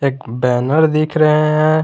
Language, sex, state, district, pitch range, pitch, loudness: Hindi, male, Jharkhand, Garhwa, 135-155 Hz, 155 Hz, -15 LUFS